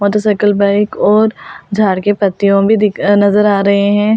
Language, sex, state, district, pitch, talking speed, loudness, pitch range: Hindi, female, Delhi, New Delhi, 205 Hz, 160 wpm, -12 LUFS, 200-210 Hz